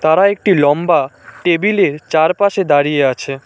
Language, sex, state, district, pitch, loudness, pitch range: Bengali, male, West Bengal, Cooch Behar, 160 Hz, -14 LUFS, 145-195 Hz